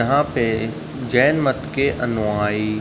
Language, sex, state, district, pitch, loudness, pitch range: Hindi, male, Uttar Pradesh, Budaun, 110 Hz, -20 LUFS, 105-120 Hz